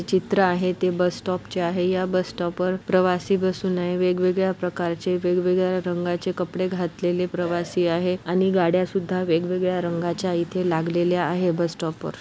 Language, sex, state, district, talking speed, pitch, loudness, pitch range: Marathi, female, Maharashtra, Solapur, 165 wpm, 180 Hz, -23 LUFS, 175-185 Hz